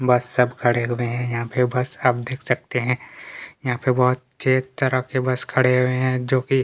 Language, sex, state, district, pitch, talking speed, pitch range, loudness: Hindi, male, Chhattisgarh, Kabirdham, 125 Hz, 215 wpm, 125-130 Hz, -21 LUFS